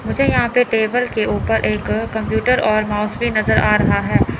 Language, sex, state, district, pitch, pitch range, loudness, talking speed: Hindi, male, Chandigarh, Chandigarh, 220 Hz, 210-240 Hz, -17 LUFS, 205 wpm